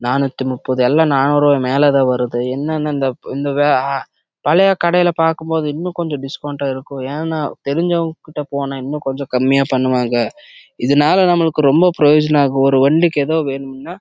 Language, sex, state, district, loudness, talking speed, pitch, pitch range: Tamil, male, Karnataka, Chamarajanagar, -16 LUFS, 60 wpm, 145 Hz, 135-160 Hz